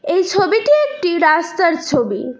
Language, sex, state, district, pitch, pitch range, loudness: Bengali, female, West Bengal, Cooch Behar, 325 Hz, 295-360 Hz, -15 LUFS